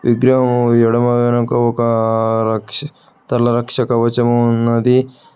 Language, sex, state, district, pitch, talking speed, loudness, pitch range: Telugu, male, Telangana, Hyderabad, 120 Hz, 90 wpm, -15 LUFS, 115-125 Hz